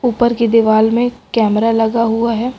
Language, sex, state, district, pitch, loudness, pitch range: Hindi, female, Bihar, Kaimur, 230 Hz, -14 LUFS, 225-240 Hz